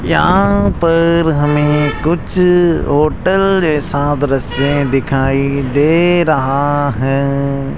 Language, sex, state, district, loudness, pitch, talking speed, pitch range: Hindi, male, Rajasthan, Jaipur, -13 LUFS, 145 Hz, 85 wpm, 140-165 Hz